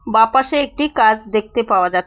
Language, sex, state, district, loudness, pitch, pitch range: Bengali, female, West Bengal, Cooch Behar, -16 LUFS, 225 Hz, 215-275 Hz